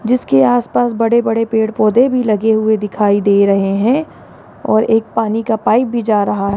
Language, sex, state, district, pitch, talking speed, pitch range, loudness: Hindi, female, Rajasthan, Jaipur, 220 Hz, 210 wpm, 205-230 Hz, -14 LUFS